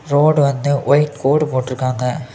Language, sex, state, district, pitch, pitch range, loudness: Tamil, male, Tamil Nadu, Kanyakumari, 140 Hz, 130-145 Hz, -16 LUFS